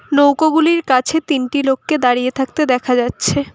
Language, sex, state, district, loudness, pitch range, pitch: Bengali, female, West Bengal, Cooch Behar, -15 LUFS, 250-310 Hz, 270 Hz